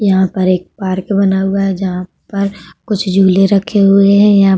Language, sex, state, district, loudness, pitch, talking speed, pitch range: Hindi, female, Uttar Pradesh, Budaun, -12 LUFS, 195 Hz, 210 wpm, 190-200 Hz